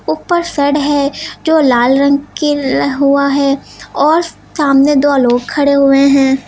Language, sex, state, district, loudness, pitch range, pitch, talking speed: Hindi, female, Uttar Pradesh, Lucknow, -12 LUFS, 275-295 Hz, 280 Hz, 150 wpm